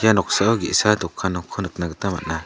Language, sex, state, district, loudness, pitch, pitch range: Garo, male, Meghalaya, West Garo Hills, -21 LUFS, 95 Hz, 85-100 Hz